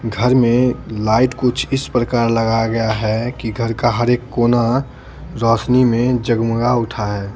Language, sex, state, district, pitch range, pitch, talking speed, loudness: Hindi, male, Bihar, Patna, 115-125 Hz, 120 Hz, 165 wpm, -17 LUFS